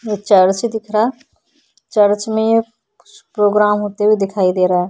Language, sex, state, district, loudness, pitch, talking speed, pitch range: Hindi, female, Uttar Pradesh, Budaun, -15 LUFS, 210 Hz, 170 wpm, 200-220 Hz